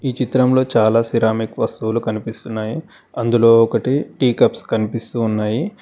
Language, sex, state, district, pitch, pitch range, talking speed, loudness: Telugu, male, Telangana, Hyderabad, 115 Hz, 110-120 Hz, 125 wpm, -17 LUFS